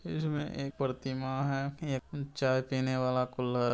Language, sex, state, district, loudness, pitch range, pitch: Hindi, male, Bihar, Saran, -33 LUFS, 130-140 Hz, 130 Hz